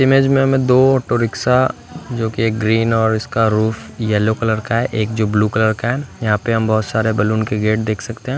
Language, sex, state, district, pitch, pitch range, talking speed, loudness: Hindi, male, Odisha, Khordha, 110 Hz, 110-120 Hz, 245 wpm, -17 LUFS